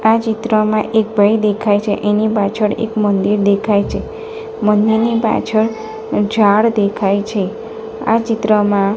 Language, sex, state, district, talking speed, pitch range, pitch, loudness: Gujarati, female, Gujarat, Gandhinagar, 135 wpm, 205-225 Hz, 215 Hz, -15 LUFS